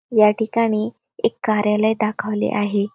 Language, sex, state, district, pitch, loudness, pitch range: Marathi, female, Maharashtra, Chandrapur, 215 Hz, -20 LUFS, 210-220 Hz